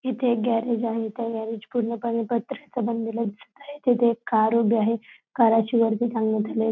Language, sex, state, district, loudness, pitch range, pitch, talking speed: Marathi, female, Maharashtra, Dhule, -24 LUFS, 225-240 Hz, 230 Hz, 180 wpm